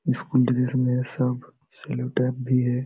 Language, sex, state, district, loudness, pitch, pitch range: Hindi, male, Bihar, Supaul, -24 LUFS, 125 Hz, 125-130 Hz